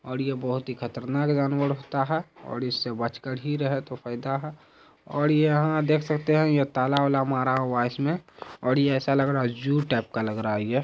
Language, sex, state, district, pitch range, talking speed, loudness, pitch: Hindi, male, Bihar, Saharsa, 125-145 Hz, 220 wpm, -26 LUFS, 135 Hz